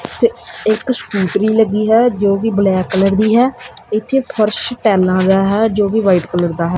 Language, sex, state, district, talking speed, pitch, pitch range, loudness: Punjabi, male, Punjab, Kapurthala, 195 wpm, 210 Hz, 195-225 Hz, -14 LUFS